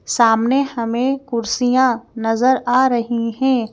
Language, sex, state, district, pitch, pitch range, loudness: Hindi, female, Madhya Pradesh, Bhopal, 245 Hz, 230-260 Hz, -17 LUFS